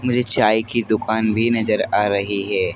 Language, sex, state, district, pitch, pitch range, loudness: Hindi, male, Madhya Pradesh, Dhar, 110 Hz, 110-125 Hz, -18 LUFS